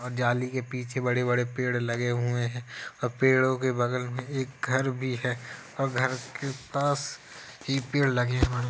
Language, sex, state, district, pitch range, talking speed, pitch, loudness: Hindi, male, Uttar Pradesh, Jalaun, 125-130 Hz, 185 wpm, 125 Hz, -28 LUFS